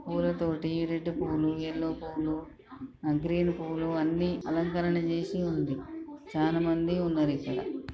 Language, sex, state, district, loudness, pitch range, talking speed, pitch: Telugu, male, Andhra Pradesh, Srikakulam, -30 LUFS, 160-175 Hz, 130 wpm, 165 Hz